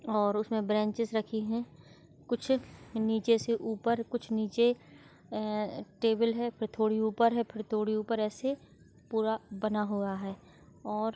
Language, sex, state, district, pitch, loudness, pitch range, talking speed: Hindi, female, Maharashtra, Nagpur, 220 Hz, -32 LUFS, 210-230 Hz, 145 wpm